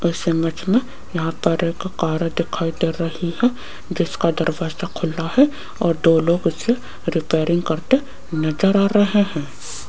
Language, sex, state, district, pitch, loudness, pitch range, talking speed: Hindi, female, Rajasthan, Jaipur, 170 Hz, -20 LUFS, 165-195 Hz, 150 wpm